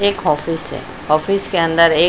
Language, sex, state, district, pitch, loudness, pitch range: Hindi, female, Maharashtra, Mumbai Suburban, 165 Hz, -17 LUFS, 150-175 Hz